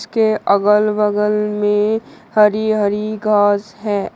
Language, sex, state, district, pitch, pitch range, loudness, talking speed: Hindi, male, Uttar Pradesh, Shamli, 210 Hz, 205-215 Hz, -16 LUFS, 115 wpm